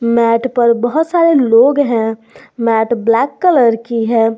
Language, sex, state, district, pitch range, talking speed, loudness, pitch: Hindi, female, Jharkhand, Garhwa, 230-265 Hz, 150 wpm, -13 LUFS, 235 Hz